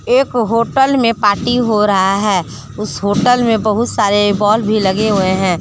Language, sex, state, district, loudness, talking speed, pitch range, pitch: Hindi, female, Jharkhand, Deoghar, -13 LUFS, 180 wpm, 200-235 Hz, 210 Hz